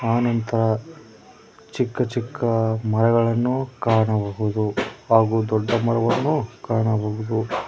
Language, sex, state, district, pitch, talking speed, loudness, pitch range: Kannada, male, Karnataka, Koppal, 115 Hz, 70 wpm, -22 LUFS, 110-120 Hz